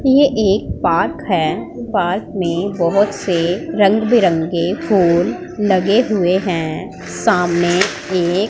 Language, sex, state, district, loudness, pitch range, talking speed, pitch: Hindi, female, Punjab, Pathankot, -16 LUFS, 175-205 Hz, 115 wpm, 185 Hz